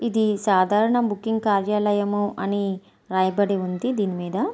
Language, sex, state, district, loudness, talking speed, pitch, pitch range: Telugu, female, Andhra Pradesh, Visakhapatnam, -22 LUFS, 120 wpm, 205 Hz, 195-220 Hz